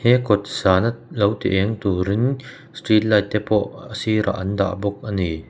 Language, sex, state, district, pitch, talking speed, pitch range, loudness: Mizo, male, Mizoram, Aizawl, 105 Hz, 175 wpm, 100-115 Hz, -20 LUFS